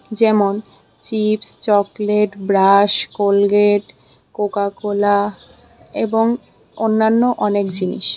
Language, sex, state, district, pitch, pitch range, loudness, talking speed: Bengali, female, Tripura, West Tripura, 205 Hz, 200-215 Hz, -17 LUFS, 75 wpm